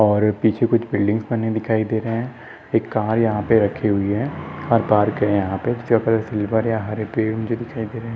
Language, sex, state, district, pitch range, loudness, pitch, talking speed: Hindi, male, Maharashtra, Nagpur, 105-115 Hz, -20 LUFS, 110 Hz, 205 wpm